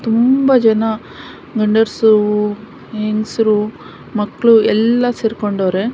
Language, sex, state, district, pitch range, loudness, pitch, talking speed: Kannada, female, Karnataka, Mysore, 215-230 Hz, -15 LUFS, 220 Hz, 70 wpm